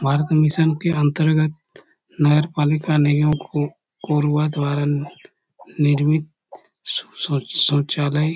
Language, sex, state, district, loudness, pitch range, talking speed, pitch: Hindi, male, Chhattisgarh, Korba, -19 LUFS, 145-155 Hz, 85 wpm, 150 Hz